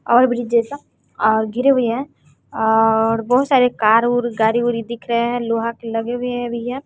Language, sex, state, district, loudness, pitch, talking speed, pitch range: Hindi, female, Bihar, West Champaran, -18 LUFS, 235 Hz, 200 wpm, 225-245 Hz